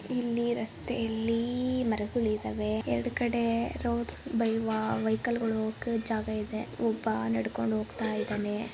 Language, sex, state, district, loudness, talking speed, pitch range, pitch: Kannada, female, Karnataka, Dakshina Kannada, -31 LUFS, 105 wpm, 210-235 Hz, 225 Hz